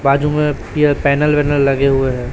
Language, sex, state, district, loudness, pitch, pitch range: Hindi, male, Chhattisgarh, Raipur, -15 LUFS, 145 Hz, 140-150 Hz